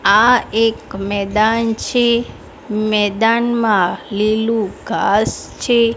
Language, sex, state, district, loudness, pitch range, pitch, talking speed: Gujarati, female, Gujarat, Gandhinagar, -16 LUFS, 210-230 Hz, 225 Hz, 80 wpm